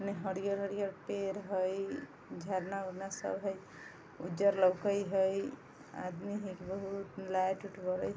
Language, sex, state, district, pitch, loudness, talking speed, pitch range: Bajjika, female, Bihar, Vaishali, 195 Hz, -36 LUFS, 130 wpm, 185-200 Hz